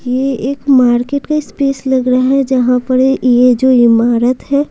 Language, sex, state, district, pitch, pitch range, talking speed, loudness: Hindi, female, Bihar, Patna, 260 Hz, 250-275 Hz, 180 wpm, -12 LUFS